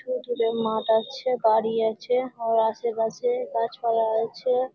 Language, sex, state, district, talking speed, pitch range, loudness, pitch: Bengali, female, West Bengal, Malda, 125 wpm, 225-255 Hz, -25 LUFS, 230 Hz